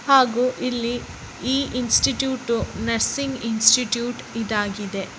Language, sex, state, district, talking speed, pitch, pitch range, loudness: Kannada, male, Karnataka, Bellary, 80 wpm, 240 Hz, 225-255 Hz, -22 LUFS